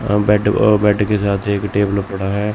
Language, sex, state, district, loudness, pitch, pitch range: Hindi, male, Chandigarh, Chandigarh, -16 LUFS, 105 Hz, 100-105 Hz